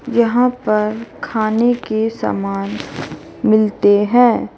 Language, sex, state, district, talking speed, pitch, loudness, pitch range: Hindi, female, Chhattisgarh, Raipur, 90 wpm, 220 Hz, -16 LUFS, 210-235 Hz